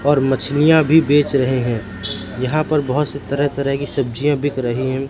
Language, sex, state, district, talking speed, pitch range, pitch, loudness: Hindi, male, Madhya Pradesh, Katni, 200 wpm, 130-145 Hz, 140 Hz, -18 LUFS